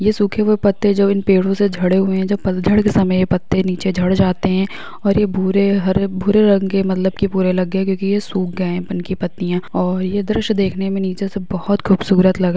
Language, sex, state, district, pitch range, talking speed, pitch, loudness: Hindi, female, Bihar, Muzaffarpur, 185-200 Hz, 245 wpm, 195 Hz, -17 LUFS